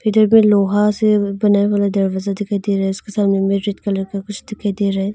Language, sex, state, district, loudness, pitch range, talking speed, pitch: Hindi, female, Arunachal Pradesh, Longding, -17 LUFS, 195-210 Hz, 255 wpm, 200 Hz